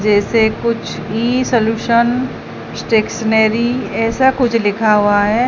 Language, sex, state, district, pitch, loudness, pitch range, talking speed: Hindi, female, Odisha, Sambalpur, 225 Hz, -15 LUFS, 220-235 Hz, 110 wpm